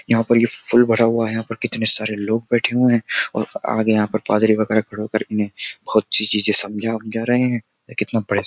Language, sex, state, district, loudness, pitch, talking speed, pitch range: Hindi, male, Uttar Pradesh, Jyotiba Phule Nagar, -18 LUFS, 110 Hz, 250 wpm, 105-115 Hz